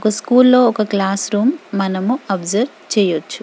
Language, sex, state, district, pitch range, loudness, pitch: Telugu, female, Telangana, Karimnagar, 195-250 Hz, -16 LUFS, 215 Hz